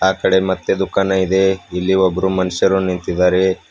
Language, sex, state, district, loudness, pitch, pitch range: Kannada, male, Karnataka, Bidar, -16 LUFS, 95 Hz, 90-95 Hz